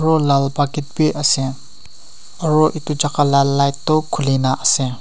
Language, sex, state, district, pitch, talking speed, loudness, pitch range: Nagamese, male, Nagaland, Kohima, 145 Hz, 155 wpm, -17 LUFS, 140-155 Hz